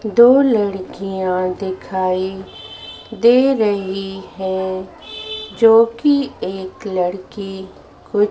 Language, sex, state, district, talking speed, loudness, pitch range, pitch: Hindi, female, Madhya Pradesh, Dhar, 80 wpm, -17 LUFS, 190-225 Hz, 195 Hz